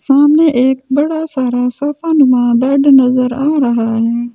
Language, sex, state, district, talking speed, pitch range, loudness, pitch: Hindi, female, Delhi, New Delhi, 165 wpm, 250-290 Hz, -12 LUFS, 265 Hz